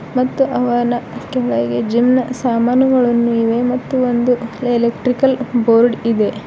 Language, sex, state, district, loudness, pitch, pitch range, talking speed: Kannada, female, Karnataka, Bidar, -16 LUFS, 240 Hz, 235-255 Hz, 100 wpm